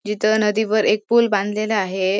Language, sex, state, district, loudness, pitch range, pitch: Marathi, female, Maharashtra, Sindhudurg, -19 LUFS, 205-220 Hz, 215 Hz